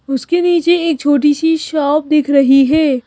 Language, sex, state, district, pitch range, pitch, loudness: Hindi, female, Madhya Pradesh, Bhopal, 280-325 Hz, 295 Hz, -13 LUFS